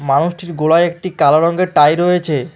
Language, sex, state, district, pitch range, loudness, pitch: Bengali, male, West Bengal, Alipurduar, 150-175 Hz, -14 LUFS, 170 Hz